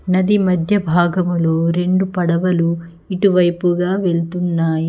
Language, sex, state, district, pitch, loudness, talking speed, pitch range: Telugu, female, Telangana, Hyderabad, 175 Hz, -17 LUFS, 85 wpm, 170-185 Hz